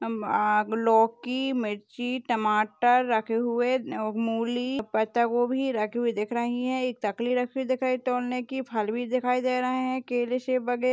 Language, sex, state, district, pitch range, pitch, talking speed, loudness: Hindi, female, Rajasthan, Churu, 225-255 Hz, 245 Hz, 165 wpm, -27 LUFS